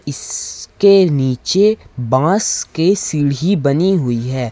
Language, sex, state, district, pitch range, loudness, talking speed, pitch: Hindi, male, Jharkhand, Ranchi, 125-190 Hz, -15 LUFS, 105 wpm, 145 Hz